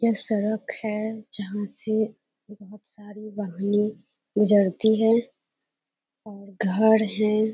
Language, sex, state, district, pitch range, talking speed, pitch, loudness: Hindi, female, Bihar, Bhagalpur, 205-220 Hz, 105 wpm, 215 Hz, -24 LUFS